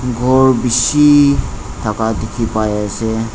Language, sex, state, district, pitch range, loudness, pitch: Nagamese, male, Nagaland, Dimapur, 105-125 Hz, -14 LUFS, 115 Hz